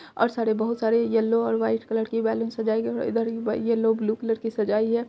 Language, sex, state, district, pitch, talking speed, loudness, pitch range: Hindi, female, Bihar, Purnia, 225 Hz, 235 wpm, -25 LUFS, 225-230 Hz